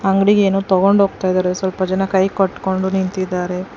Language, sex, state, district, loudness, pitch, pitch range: Kannada, female, Karnataka, Bangalore, -17 LUFS, 190 Hz, 185-195 Hz